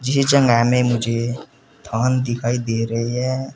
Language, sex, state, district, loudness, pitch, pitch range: Hindi, male, Uttar Pradesh, Saharanpur, -19 LUFS, 125 Hz, 115-130 Hz